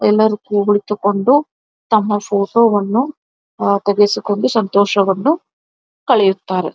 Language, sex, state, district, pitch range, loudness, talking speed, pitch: Kannada, female, Karnataka, Belgaum, 200-220 Hz, -15 LUFS, 60 wpm, 205 Hz